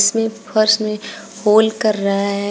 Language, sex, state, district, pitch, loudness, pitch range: Hindi, female, Uttar Pradesh, Shamli, 215 Hz, -16 LUFS, 205-220 Hz